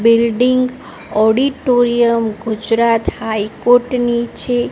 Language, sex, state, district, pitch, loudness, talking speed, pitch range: Gujarati, female, Gujarat, Gandhinagar, 235 Hz, -15 LUFS, 90 wpm, 225-245 Hz